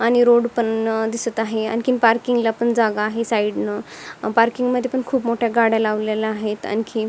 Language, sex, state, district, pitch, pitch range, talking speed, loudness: Marathi, female, Maharashtra, Dhule, 230 Hz, 220-235 Hz, 195 wpm, -20 LUFS